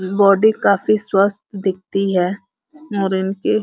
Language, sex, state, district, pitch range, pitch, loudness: Hindi, female, Uttar Pradesh, Varanasi, 190-215 Hz, 195 Hz, -17 LUFS